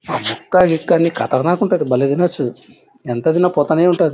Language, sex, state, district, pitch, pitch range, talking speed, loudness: Telugu, male, Andhra Pradesh, Anantapur, 165 Hz, 140-180 Hz, 160 wpm, -16 LUFS